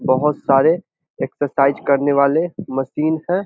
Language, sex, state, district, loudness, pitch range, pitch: Hindi, male, Bihar, Samastipur, -18 LUFS, 140-160 Hz, 145 Hz